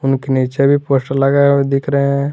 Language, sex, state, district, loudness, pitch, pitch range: Hindi, male, Jharkhand, Garhwa, -14 LUFS, 140 Hz, 135-140 Hz